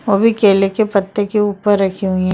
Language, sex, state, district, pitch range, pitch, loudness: Hindi, female, Bihar, Darbhanga, 195-210 Hz, 200 Hz, -15 LUFS